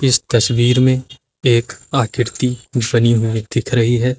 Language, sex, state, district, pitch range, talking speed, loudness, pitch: Hindi, male, Uttar Pradesh, Lucknow, 120-130 Hz, 145 wpm, -16 LUFS, 120 Hz